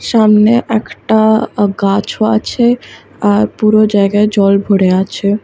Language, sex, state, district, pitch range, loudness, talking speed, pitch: Bengali, female, West Bengal, Kolkata, 200-220 Hz, -12 LUFS, 110 wpm, 210 Hz